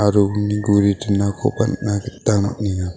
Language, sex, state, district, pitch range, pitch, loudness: Garo, male, Meghalaya, West Garo Hills, 100-105 Hz, 105 Hz, -19 LUFS